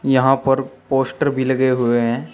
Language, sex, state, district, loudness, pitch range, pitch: Hindi, male, Uttar Pradesh, Saharanpur, -18 LUFS, 130-135 Hz, 130 Hz